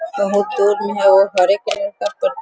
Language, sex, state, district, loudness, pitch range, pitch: Hindi, female, Bihar, Sitamarhi, -16 LUFS, 200-290 Hz, 205 Hz